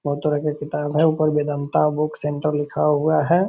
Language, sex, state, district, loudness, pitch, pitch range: Hindi, male, Bihar, Purnia, -20 LUFS, 150 Hz, 145-155 Hz